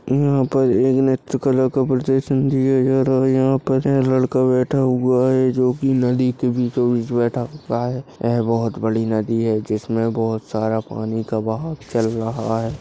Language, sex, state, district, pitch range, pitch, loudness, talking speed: Hindi, male, Chhattisgarh, Bastar, 115-130 Hz, 125 Hz, -19 LUFS, 185 wpm